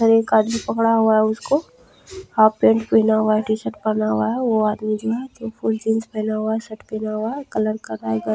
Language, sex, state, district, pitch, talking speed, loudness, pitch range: Maithili, female, Bihar, Supaul, 220 Hz, 230 wpm, -20 LUFS, 215-225 Hz